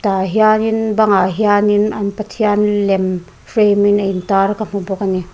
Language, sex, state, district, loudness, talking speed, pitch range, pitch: Mizo, female, Mizoram, Aizawl, -15 LUFS, 190 wpm, 195-215 Hz, 205 Hz